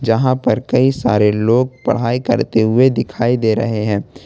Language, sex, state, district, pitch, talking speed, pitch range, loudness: Hindi, male, Jharkhand, Ranchi, 115 Hz, 170 wpm, 110-130 Hz, -15 LUFS